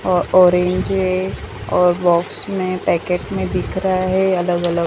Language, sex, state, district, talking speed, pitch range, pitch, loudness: Hindi, female, Maharashtra, Mumbai Suburban, 160 wpm, 175-185 Hz, 185 Hz, -17 LUFS